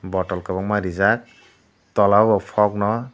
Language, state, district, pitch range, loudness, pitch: Kokborok, Tripura, Dhalai, 95-105 Hz, -20 LUFS, 100 Hz